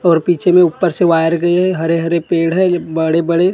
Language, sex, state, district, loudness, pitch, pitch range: Hindi, male, Maharashtra, Gondia, -14 LUFS, 170 Hz, 165-180 Hz